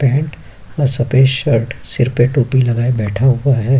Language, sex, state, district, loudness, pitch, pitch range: Hindi, male, Uttar Pradesh, Jyotiba Phule Nagar, -15 LUFS, 130 Hz, 120-135 Hz